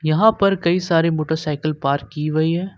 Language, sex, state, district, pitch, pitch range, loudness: Hindi, male, Jharkhand, Ranchi, 160 Hz, 155-175 Hz, -19 LUFS